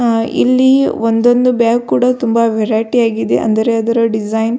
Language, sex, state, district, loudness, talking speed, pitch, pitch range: Kannada, female, Karnataka, Belgaum, -13 LUFS, 155 wpm, 230 Hz, 225-245 Hz